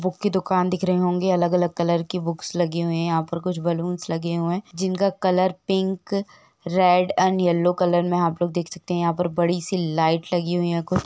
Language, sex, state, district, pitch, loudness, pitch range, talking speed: Hindi, female, Bihar, Gopalganj, 175 Hz, -22 LUFS, 170-185 Hz, 230 wpm